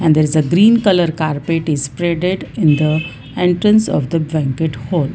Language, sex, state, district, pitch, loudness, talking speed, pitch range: English, female, Gujarat, Valsad, 160 Hz, -15 LUFS, 185 wpm, 150-175 Hz